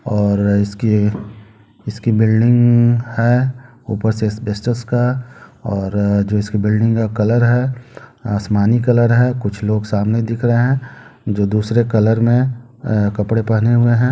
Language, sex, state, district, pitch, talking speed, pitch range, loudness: Hindi, male, Bihar, Gopalganj, 115 Hz, 145 wpm, 105-120 Hz, -16 LUFS